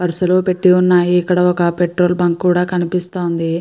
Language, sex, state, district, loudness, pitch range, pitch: Telugu, female, Andhra Pradesh, Guntur, -15 LUFS, 175-180 Hz, 180 Hz